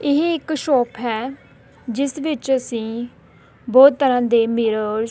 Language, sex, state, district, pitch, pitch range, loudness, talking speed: Punjabi, female, Punjab, Kapurthala, 250 Hz, 230-280 Hz, -19 LUFS, 140 wpm